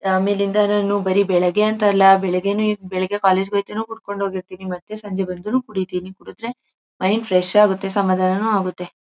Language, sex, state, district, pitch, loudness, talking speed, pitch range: Kannada, female, Karnataka, Mysore, 195 Hz, -19 LUFS, 150 wpm, 185-210 Hz